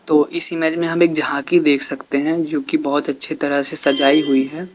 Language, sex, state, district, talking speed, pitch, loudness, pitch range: Hindi, male, Uttar Pradesh, Lalitpur, 215 wpm, 150 Hz, -17 LUFS, 140-165 Hz